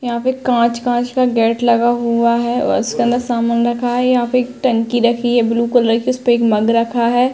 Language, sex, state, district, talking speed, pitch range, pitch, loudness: Hindi, female, Uttar Pradesh, Hamirpur, 230 wpm, 235-245 Hz, 240 Hz, -15 LUFS